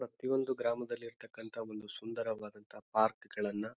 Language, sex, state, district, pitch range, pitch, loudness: Kannada, male, Karnataka, Bijapur, 105-120 Hz, 115 Hz, -37 LUFS